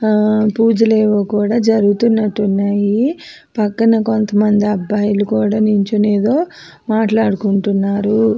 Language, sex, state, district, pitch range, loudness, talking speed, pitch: Telugu, female, Andhra Pradesh, Anantapur, 205-225 Hz, -15 LUFS, 85 wpm, 215 Hz